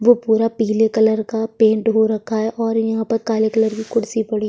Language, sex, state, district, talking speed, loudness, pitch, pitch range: Hindi, female, Chhattisgarh, Sukma, 240 wpm, -18 LUFS, 220 Hz, 220-225 Hz